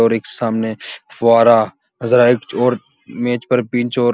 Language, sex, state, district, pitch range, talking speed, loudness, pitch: Hindi, male, Uttar Pradesh, Muzaffarnagar, 115-120 Hz, 70 wpm, -16 LUFS, 120 Hz